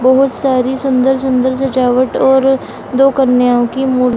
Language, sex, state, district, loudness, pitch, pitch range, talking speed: Hindi, female, Bihar, Bhagalpur, -12 LUFS, 260 Hz, 255-265 Hz, 145 wpm